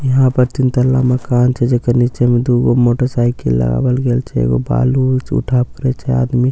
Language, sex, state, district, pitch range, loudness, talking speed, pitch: Maithili, male, Bihar, Katihar, 120-130 Hz, -14 LUFS, 195 wpm, 125 Hz